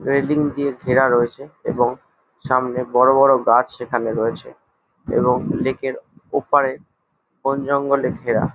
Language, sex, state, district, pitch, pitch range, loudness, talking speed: Bengali, male, West Bengal, Jalpaiguri, 130 Hz, 125-140 Hz, -19 LUFS, 120 wpm